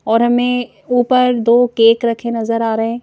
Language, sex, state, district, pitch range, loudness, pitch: Hindi, female, Madhya Pradesh, Bhopal, 230-245 Hz, -14 LUFS, 235 Hz